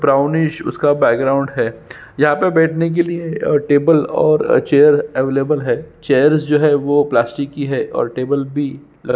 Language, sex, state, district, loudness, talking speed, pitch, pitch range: Hindi, male, Chhattisgarh, Sukma, -15 LUFS, 165 wpm, 145 Hz, 140-155 Hz